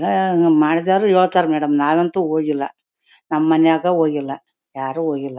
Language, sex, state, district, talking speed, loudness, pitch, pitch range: Kannada, female, Karnataka, Bellary, 135 wpm, -17 LUFS, 160 Hz, 145-175 Hz